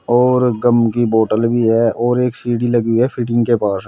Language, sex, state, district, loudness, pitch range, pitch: Hindi, male, Uttar Pradesh, Saharanpur, -15 LUFS, 115-120 Hz, 120 Hz